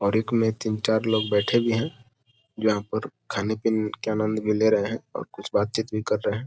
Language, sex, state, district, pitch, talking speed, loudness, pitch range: Hindi, male, Bihar, Gopalganj, 110 Hz, 220 wpm, -25 LUFS, 105-115 Hz